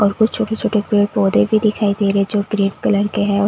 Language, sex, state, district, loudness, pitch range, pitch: Hindi, female, Delhi, New Delhi, -17 LUFS, 200-215 Hz, 205 Hz